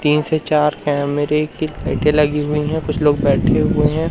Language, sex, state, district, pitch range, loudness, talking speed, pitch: Hindi, male, Madhya Pradesh, Umaria, 150-155 Hz, -17 LUFS, 205 wpm, 150 Hz